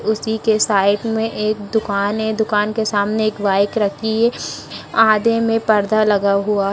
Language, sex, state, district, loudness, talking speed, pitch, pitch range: Hindi, female, Bihar, Madhepura, -17 LUFS, 180 wpm, 215 Hz, 205-220 Hz